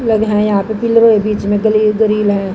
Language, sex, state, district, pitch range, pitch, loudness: Hindi, female, Haryana, Jhajjar, 205-220 Hz, 215 Hz, -13 LUFS